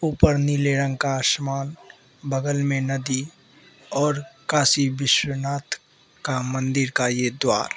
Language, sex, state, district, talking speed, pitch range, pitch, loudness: Hindi, male, Mizoram, Aizawl, 130 wpm, 130-145 Hz, 140 Hz, -22 LUFS